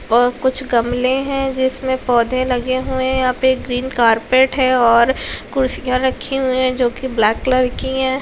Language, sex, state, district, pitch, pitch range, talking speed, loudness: Hindi, female, Bihar, Lakhisarai, 255 Hz, 245-260 Hz, 185 wpm, -17 LUFS